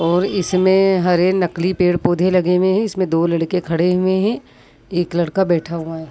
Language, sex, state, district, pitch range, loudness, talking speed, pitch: Hindi, female, Bihar, Purnia, 170-185 Hz, -17 LUFS, 185 wpm, 180 Hz